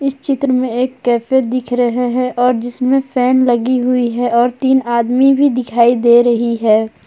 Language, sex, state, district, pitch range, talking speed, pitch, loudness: Hindi, female, Jharkhand, Palamu, 240-255 Hz, 180 wpm, 250 Hz, -14 LUFS